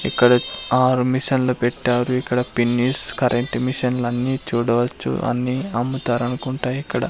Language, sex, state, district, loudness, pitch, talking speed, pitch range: Telugu, male, Andhra Pradesh, Sri Satya Sai, -20 LUFS, 125 Hz, 110 wpm, 120-130 Hz